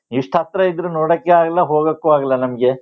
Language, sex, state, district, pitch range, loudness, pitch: Kannada, male, Karnataka, Shimoga, 135-175 Hz, -16 LUFS, 155 Hz